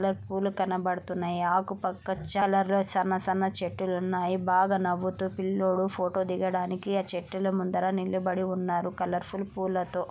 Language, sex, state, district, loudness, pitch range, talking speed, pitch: Telugu, female, Andhra Pradesh, Anantapur, -29 LUFS, 180-190 Hz, 135 wpm, 185 Hz